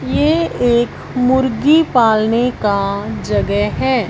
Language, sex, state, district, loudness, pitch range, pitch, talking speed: Hindi, female, Punjab, Fazilka, -15 LUFS, 220-260 Hz, 245 Hz, 100 wpm